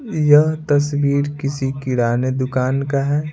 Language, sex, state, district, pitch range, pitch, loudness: Hindi, male, Bihar, Patna, 130-150 Hz, 140 Hz, -18 LUFS